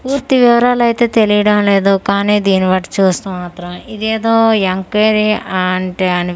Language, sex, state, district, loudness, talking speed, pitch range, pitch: Telugu, female, Andhra Pradesh, Manyam, -13 LUFS, 130 wpm, 185-225 Hz, 205 Hz